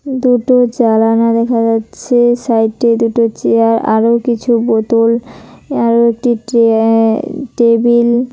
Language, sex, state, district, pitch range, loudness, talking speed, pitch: Bengali, female, West Bengal, Cooch Behar, 225-240 Hz, -12 LUFS, 115 wpm, 230 Hz